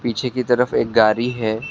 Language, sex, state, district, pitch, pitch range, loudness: Hindi, male, Assam, Kamrup Metropolitan, 120 Hz, 110-125 Hz, -18 LUFS